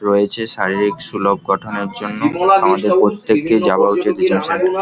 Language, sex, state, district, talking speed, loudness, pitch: Bengali, male, West Bengal, Paschim Medinipur, 125 wpm, -16 LUFS, 115 Hz